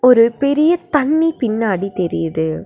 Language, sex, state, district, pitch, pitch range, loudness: Tamil, female, Tamil Nadu, Nilgiris, 240 Hz, 190-295 Hz, -16 LUFS